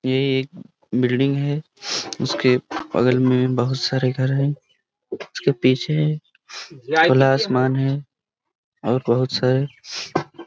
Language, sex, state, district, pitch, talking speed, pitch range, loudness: Hindi, male, Jharkhand, Sahebganj, 130 Hz, 110 wpm, 125-140 Hz, -20 LUFS